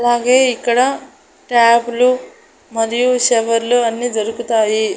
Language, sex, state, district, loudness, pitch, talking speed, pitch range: Telugu, female, Andhra Pradesh, Annamaya, -15 LUFS, 240 Hz, 95 wpm, 230-250 Hz